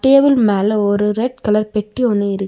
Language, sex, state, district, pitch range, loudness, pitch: Tamil, female, Tamil Nadu, Nilgiris, 205-250 Hz, -15 LUFS, 215 Hz